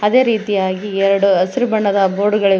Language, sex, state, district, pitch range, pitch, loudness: Kannada, female, Karnataka, Koppal, 195-210 Hz, 200 Hz, -15 LUFS